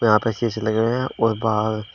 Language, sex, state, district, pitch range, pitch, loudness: Hindi, male, Uttar Pradesh, Shamli, 110-115 Hz, 110 Hz, -21 LUFS